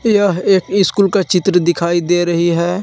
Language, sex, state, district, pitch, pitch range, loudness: Hindi, male, Jharkhand, Palamu, 180 Hz, 175-200 Hz, -14 LUFS